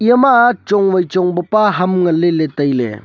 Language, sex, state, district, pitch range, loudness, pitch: Wancho, male, Arunachal Pradesh, Longding, 165-210 Hz, -14 LUFS, 180 Hz